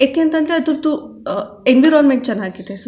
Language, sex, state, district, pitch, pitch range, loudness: Kannada, female, Karnataka, Chamarajanagar, 270 Hz, 205-310 Hz, -15 LUFS